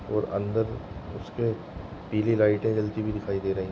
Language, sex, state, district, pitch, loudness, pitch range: Hindi, male, Goa, North and South Goa, 105 Hz, -28 LUFS, 100-110 Hz